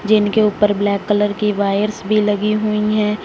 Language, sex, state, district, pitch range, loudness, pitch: Hindi, female, Punjab, Fazilka, 205-215 Hz, -17 LUFS, 210 Hz